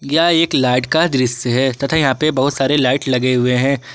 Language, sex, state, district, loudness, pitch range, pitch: Hindi, male, Jharkhand, Ranchi, -15 LUFS, 125-145 Hz, 135 Hz